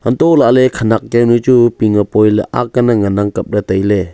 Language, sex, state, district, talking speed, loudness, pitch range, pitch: Wancho, male, Arunachal Pradesh, Longding, 200 wpm, -12 LUFS, 105-120 Hz, 115 Hz